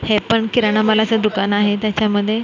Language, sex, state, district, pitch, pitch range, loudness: Marathi, female, Maharashtra, Mumbai Suburban, 215 Hz, 210-220 Hz, -16 LUFS